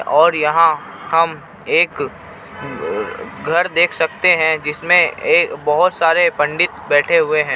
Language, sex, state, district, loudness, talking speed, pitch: Hindi, male, Jharkhand, Ranchi, -15 LUFS, 125 wpm, 180 Hz